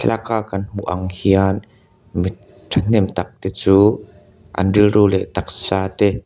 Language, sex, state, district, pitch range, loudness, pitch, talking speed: Mizo, male, Mizoram, Aizawl, 95-105 Hz, -18 LUFS, 100 Hz, 155 wpm